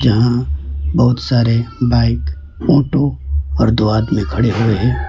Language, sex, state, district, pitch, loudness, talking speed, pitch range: Hindi, male, West Bengal, Alipurduar, 110 Hz, -15 LUFS, 130 wpm, 75-120 Hz